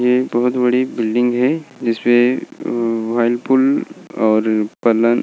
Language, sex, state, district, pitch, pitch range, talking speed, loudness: Hindi, male, Bihar, Gaya, 120 Hz, 115-125 Hz, 80 wpm, -17 LUFS